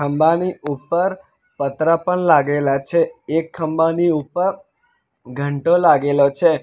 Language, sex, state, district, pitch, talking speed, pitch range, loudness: Gujarati, male, Gujarat, Valsad, 165 Hz, 110 wpm, 145-180 Hz, -18 LUFS